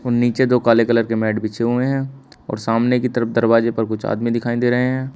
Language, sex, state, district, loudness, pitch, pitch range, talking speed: Hindi, male, Uttar Pradesh, Shamli, -18 LUFS, 120 Hz, 115-125 Hz, 230 wpm